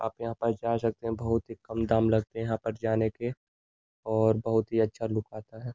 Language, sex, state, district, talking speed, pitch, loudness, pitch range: Hindi, male, Uttar Pradesh, Gorakhpur, 240 wpm, 115 Hz, -29 LUFS, 110-115 Hz